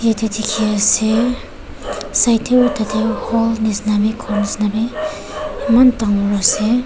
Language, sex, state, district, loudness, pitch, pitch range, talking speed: Nagamese, female, Nagaland, Kohima, -16 LUFS, 220 Hz, 210-235 Hz, 120 wpm